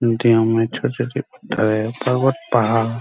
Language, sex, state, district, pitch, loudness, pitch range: Hindi, male, Bihar, Araria, 115 Hz, -19 LUFS, 115-120 Hz